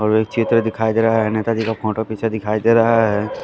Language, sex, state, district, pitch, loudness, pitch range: Hindi, male, Punjab, Fazilka, 110 Hz, -18 LUFS, 110-115 Hz